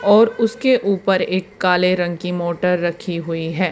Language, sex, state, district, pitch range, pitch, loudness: Hindi, female, Haryana, Charkhi Dadri, 175-200 Hz, 185 Hz, -18 LUFS